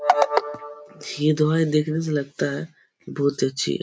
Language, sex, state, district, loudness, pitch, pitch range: Hindi, male, Uttar Pradesh, Etah, -23 LUFS, 145 Hz, 145-155 Hz